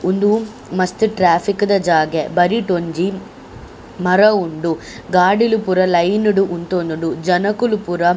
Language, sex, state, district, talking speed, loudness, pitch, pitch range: Tulu, female, Karnataka, Dakshina Kannada, 115 wpm, -16 LUFS, 185 Hz, 175-205 Hz